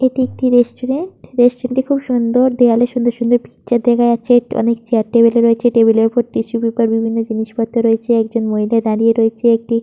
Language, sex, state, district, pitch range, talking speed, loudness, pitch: Bengali, female, West Bengal, Purulia, 230-245 Hz, 190 wpm, -15 LUFS, 235 Hz